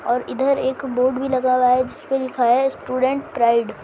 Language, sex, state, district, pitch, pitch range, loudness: Hindi, female, Maharashtra, Chandrapur, 255 Hz, 250-270 Hz, -19 LUFS